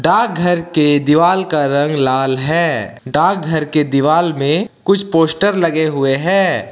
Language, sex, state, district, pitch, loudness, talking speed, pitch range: Hindi, male, Jharkhand, Ranchi, 160 Hz, -14 LUFS, 145 wpm, 145-175 Hz